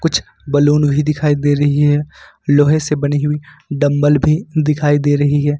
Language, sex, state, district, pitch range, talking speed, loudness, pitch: Hindi, male, Jharkhand, Ranchi, 145-150 Hz, 180 wpm, -15 LUFS, 145 Hz